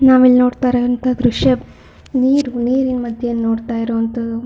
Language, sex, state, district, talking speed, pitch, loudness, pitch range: Kannada, female, Karnataka, Shimoga, 150 wpm, 245 Hz, -16 LUFS, 235-255 Hz